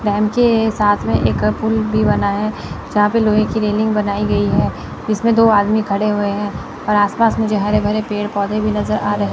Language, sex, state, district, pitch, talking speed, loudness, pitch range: Hindi, female, Chandigarh, Chandigarh, 210 Hz, 210 wpm, -16 LUFS, 205-215 Hz